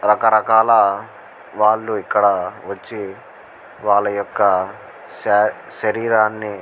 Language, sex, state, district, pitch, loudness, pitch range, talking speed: Telugu, male, Andhra Pradesh, Guntur, 105 Hz, -17 LUFS, 105-110 Hz, 90 wpm